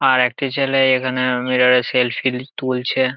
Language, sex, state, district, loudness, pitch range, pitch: Bengali, male, West Bengal, Jalpaiguri, -17 LUFS, 125-130 Hz, 130 Hz